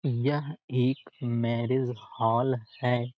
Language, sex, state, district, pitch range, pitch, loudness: Hindi, male, Bihar, Gopalganj, 120-130 Hz, 125 Hz, -29 LUFS